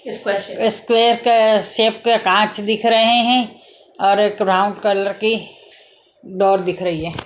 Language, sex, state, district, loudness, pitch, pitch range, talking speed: Hindi, female, Punjab, Kapurthala, -16 LUFS, 215 Hz, 200-230 Hz, 130 wpm